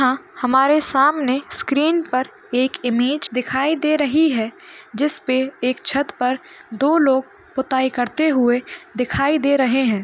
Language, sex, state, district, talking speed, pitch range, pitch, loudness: Hindi, female, Maharashtra, Nagpur, 150 wpm, 255-300 Hz, 265 Hz, -19 LUFS